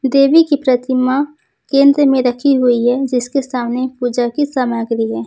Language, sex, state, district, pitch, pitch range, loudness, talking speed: Hindi, female, Jharkhand, Ranchi, 255 Hz, 245-275 Hz, -14 LUFS, 160 wpm